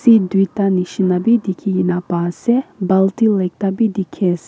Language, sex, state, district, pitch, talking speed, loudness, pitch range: Nagamese, female, Nagaland, Kohima, 195 Hz, 160 wpm, -17 LUFS, 180-210 Hz